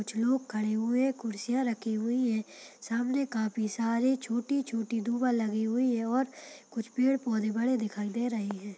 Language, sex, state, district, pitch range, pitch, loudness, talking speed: Hindi, female, Uttarakhand, Tehri Garhwal, 220-255 Hz, 235 Hz, -30 LUFS, 165 wpm